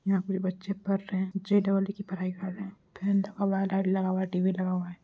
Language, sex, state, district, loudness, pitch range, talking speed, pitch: Hindi, female, Uttar Pradesh, Deoria, -29 LUFS, 185-195 Hz, 310 wpm, 195 Hz